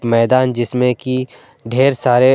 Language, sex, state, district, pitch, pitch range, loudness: Hindi, male, Jharkhand, Deoghar, 125 Hz, 120-130 Hz, -15 LUFS